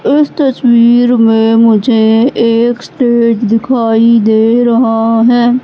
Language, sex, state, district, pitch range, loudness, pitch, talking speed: Hindi, female, Madhya Pradesh, Katni, 225-245 Hz, -9 LUFS, 235 Hz, 105 wpm